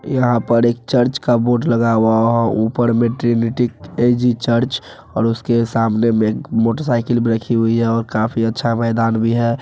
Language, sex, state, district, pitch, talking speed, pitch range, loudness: Hindi, male, Bihar, Araria, 115 Hz, 175 wpm, 115-120 Hz, -16 LUFS